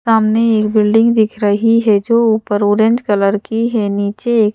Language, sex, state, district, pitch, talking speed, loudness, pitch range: Hindi, female, Madhya Pradesh, Bhopal, 220 Hz, 185 wpm, -13 LUFS, 205-230 Hz